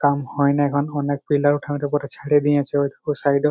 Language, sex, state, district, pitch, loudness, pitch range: Bengali, male, West Bengal, Malda, 145 Hz, -21 LUFS, 140-145 Hz